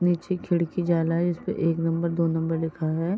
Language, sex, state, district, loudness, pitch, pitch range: Hindi, female, Uttar Pradesh, Varanasi, -25 LUFS, 170 Hz, 165-175 Hz